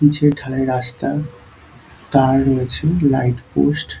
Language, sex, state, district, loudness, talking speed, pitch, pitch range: Bengali, male, West Bengal, Dakshin Dinajpur, -17 LUFS, 120 wpm, 130 Hz, 125-145 Hz